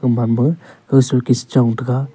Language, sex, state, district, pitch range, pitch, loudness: Wancho, male, Arunachal Pradesh, Longding, 120-135 Hz, 125 Hz, -16 LUFS